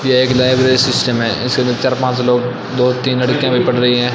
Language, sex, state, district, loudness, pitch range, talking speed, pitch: Hindi, male, Rajasthan, Bikaner, -14 LUFS, 125-130 Hz, 245 wpm, 125 Hz